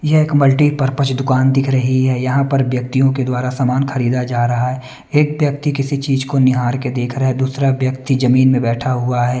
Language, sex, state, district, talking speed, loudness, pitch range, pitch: Hindi, male, Bihar, West Champaran, 215 wpm, -16 LUFS, 125-135 Hz, 130 Hz